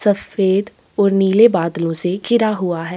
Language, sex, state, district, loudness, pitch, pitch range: Hindi, female, Chhattisgarh, Korba, -16 LUFS, 195 Hz, 180-210 Hz